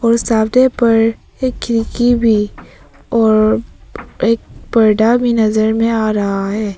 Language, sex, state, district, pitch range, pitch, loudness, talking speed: Hindi, female, Arunachal Pradesh, Papum Pare, 215-235 Hz, 225 Hz, -14 LUFS, 135 wpm